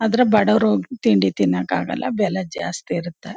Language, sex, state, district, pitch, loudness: Kannada, female, Karnataka, Chamarajanagar, 205 Hz, -20 LUFS